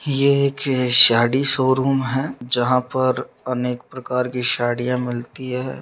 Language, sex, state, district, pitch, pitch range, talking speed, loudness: Hindi, male, Bihar, Darbhanga, 125 Hz, 125-135 Hz, 135 wpm, -19 LUFS